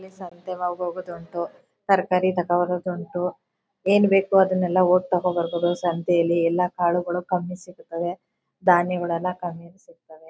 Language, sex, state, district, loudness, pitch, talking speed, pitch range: Kannada, female, Karnataka, Chamarajanagar, -23 LUFS, 180 Hz, 115 wpm, 175-185 Hz